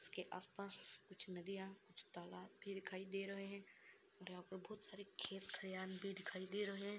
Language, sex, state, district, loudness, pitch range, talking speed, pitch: Hindi, male, Bihar, Madhepura, -50 LUFS, 185-200 Hz, 205 wpm, 195 Hz